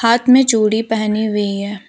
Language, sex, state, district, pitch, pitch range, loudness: Hindi, female, Jharkhand, Deoghar, 220 Hz, 210-230 Hz, -15 LUFS